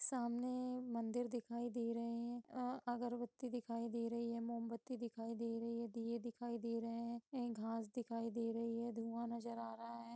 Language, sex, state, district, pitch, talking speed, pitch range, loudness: Hindi, female, Bihar, Sitamarhi, 235 Hz, 190 wpm, 230-240 Hz, -45 LUFS